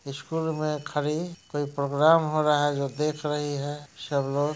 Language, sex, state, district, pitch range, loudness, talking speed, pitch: Hindi, male, Bihar, Muzaffarpur, 145-155 Hz, -26 LUFS, 185 wpm, 150 Hz